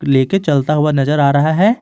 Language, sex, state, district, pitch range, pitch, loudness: Hindi, male, Jharkhand, Garhwa, 140-160 Hz, 150 Hz, -14 LUFS